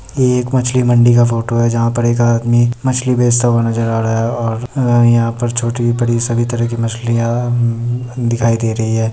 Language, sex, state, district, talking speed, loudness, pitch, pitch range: Hindi, male, Bihar, Muzaffarpur, 215 wpm, -14 LUFS, 120 Hz, 115-120 Hz